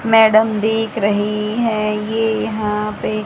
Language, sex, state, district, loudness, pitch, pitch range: Hindi, female, Haryana, Jhajjar, -17 LUFS, 215 Hz, 210-225 Hz